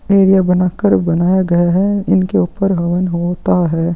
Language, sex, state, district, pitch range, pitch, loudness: Hindi, male, Chhattisgarh, Kabirdham, 175-195 Hz, 180 Hz, -14 LUFS